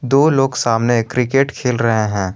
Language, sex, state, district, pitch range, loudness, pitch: Hindi, male, Jharkhand, Garhwa, 115-135 Hz, -16 LUFS, 125 Hz